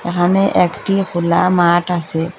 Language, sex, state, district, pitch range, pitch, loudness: Bengali, female, Assam, Hailakandi, 170-185 Hz, 175 Hz, -15 LUFS